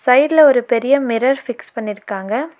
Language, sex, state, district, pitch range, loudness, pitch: Tamil, female, Tamil Nadu, Nilgiris, 230-280 Hz, -15 LUFS, 250 Hz